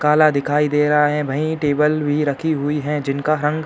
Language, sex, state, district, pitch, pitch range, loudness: Hindi, male, Uttar Pradesh, Hamirpur, 150 Hz, 145-150 Hz, -18 LUFS